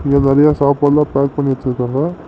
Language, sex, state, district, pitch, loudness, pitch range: Tamil, male, Tamil Nadu, Namakkal, 140 Hz, -14 LUFS, 135-145 Hz